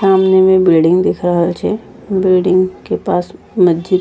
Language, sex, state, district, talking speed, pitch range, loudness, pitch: Angika, female, Bihar, Bhagalpur, 165 wpm, 175-190 Hz, -13 LUFS, 185 Hz